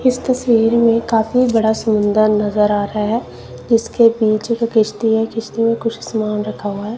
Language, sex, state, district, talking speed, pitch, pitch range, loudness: Hindi, female, Punjab, Kapurthala, 170 wpm, 225 Hz, 210-230 Hz, -16 LUFS